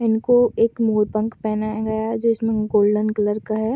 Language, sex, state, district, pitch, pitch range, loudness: Hindi, female, Uttar Pradesh, Jyotiba Phule Nagar, 220 Hz, 215-225 Hz, -20 LUFS